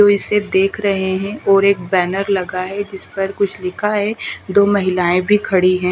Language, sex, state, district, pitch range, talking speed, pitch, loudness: Hindi, female, Haryana, Charkhi Dadri, 185-205 Hz, 200 wpm, 195 Hz, -16 LUFS